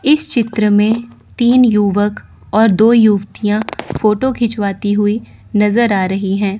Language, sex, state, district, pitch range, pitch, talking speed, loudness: Hindi, female, Chandigarh, Chandigarh, 205-235 Hz, 215 Hz, 135 wpm, -14 LUFS